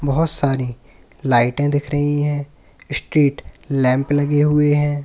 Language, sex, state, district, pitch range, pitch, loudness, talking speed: Hindi, male, Uttar Pradesh, Lalitpur, 135-145 Hz, 145 Hz, -18 LUFS, 130 wpm